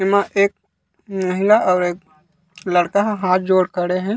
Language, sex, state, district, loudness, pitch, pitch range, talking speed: Chhattisgarhi, male, Chhattisgarh, Raigarh, -18 LUFS, 185 Hz, 180-200 Hz, 130 wpm